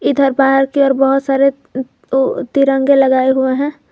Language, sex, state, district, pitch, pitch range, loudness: Hindi, female, Jharkhand, Garhwa, 270 Hz, 265-275 Hz, -13 LUFS